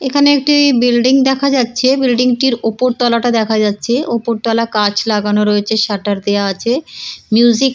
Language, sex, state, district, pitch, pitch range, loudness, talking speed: Bengali, female, West Bengal, Purulia, 235 Hz, 215-260 Hz, -13 LUFS, 155 wpm